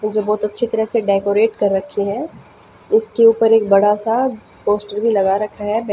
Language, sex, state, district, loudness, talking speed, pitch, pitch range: Hindi, female, Haryana, Jhajjar, -17 LUFS, 190 wpm, 210 Hz, 205-225 Hz